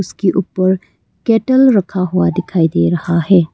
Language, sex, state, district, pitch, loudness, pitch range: Hindi, female, Arunachal Pradesh, Longding, 185 Hz, -14 LUFS, 175-195 Hz